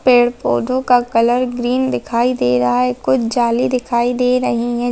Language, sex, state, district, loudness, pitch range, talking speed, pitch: Hindi, female, Bihar, Samastipur, -16 LUFS, 235-250 Hz, 170 wpm, 245 Hz